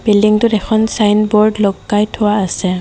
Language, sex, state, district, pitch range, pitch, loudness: Assamese, female, Assam, Kamrup Metropolitan, 205-215 Hz, 210 Hz, -13 LUFS